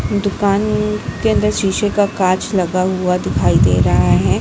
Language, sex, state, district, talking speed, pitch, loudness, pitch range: Hindi, female, Bihar, Saharsa, 175 wpm, 195 Hz, -15 LUFS, 185-205 Hz